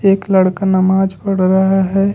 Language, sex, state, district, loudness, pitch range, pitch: Hindi, male, Jharkhand, Ranchi, -13 LUFS, 190-195 Hz, 190 Hz